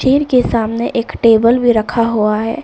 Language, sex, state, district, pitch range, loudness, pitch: Hindi, female, Arunachal Pradesh, Papum Pare, 225-245 Hz, -13 LUFS, 230 Hz